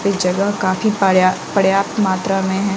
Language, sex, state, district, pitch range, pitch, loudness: Hindi, female, Bihar, West Champaran, 185-200 Hz, 195 Hz, -16 LUFS